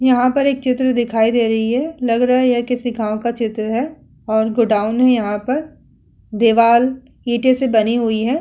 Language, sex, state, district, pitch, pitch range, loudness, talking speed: Hindi, female, Uttar Pradesh, Muzaffarnagar, 240 Hz, 225-255 Hz, -16 LUFS, 200 wpm